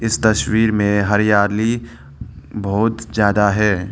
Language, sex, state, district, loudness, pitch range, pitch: Hindi, male, Arunachal Pradesh, Lower Dibang Valley, -17 LUFS, 100-110 Hz, 105 Hz